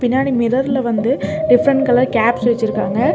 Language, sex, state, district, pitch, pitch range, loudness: Tamil, female, Tamil Nadu, Nilgiris, 245 Hz, 225-260 Hz, -16 LUFS